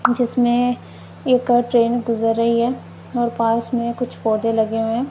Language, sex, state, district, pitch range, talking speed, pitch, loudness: Hindi, male, Punjab, Kapurthala, 230-245 Hz, 155 wpm, 235 Hz, -19 LUFS